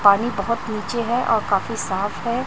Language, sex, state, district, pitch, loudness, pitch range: Hindi, female, Chhattisgarh, Raipur, 215 Hz, -22 LUFS, 200-235 Hz